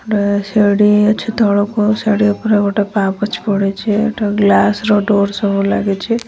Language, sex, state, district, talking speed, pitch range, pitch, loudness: Odia, male, Odisha, Nuapada, 95 wpm, 200-215 Hz, 205 Hz, -14 LUFS